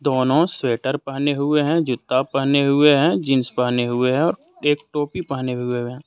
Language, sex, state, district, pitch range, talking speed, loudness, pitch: Hindi, male, Jharkhand, Deoghar, 125-145 Hz, 190 wpm, -20 LUFS, 135 Hz